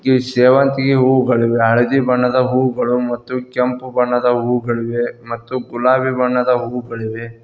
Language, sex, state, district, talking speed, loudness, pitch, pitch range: Kannada, male, Karnataka, Koppal, 115 wpm, -16 LUFS, 125 Hz, 120-130 Hz